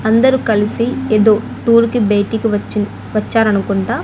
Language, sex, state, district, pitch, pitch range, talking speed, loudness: Telugu, female, Andhra Pradesh, Annamaya, 220 Hz, 210-230 Hz, 120 wpm, -14 LUFS